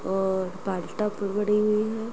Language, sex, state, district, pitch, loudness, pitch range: Hindi, female, Uttar Pradesh, Jyotiba Phule Nagar, 205 Hz, -26 LUFS, 190-210 Hz